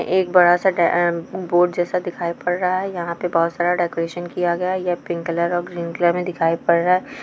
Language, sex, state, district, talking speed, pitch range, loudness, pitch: Hindi, female, Chhattisgarh, Bilaspur, 265 wpm, 170-180 Hz, -20 LUFS, 175 Hz